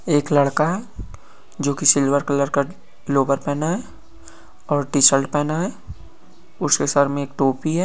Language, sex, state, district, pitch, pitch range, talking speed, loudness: Hindi, male, Rajasthan, Churu, 140 Hz, 135-150 Hz, 160 wpm, -19 LUFS